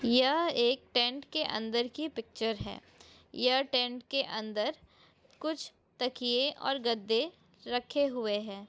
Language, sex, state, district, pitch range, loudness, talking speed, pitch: Hindi, female, Chhattisgarh, Bilaspur, 230-275 Hz, -32 LUFS, 130 wpm, 250 Hz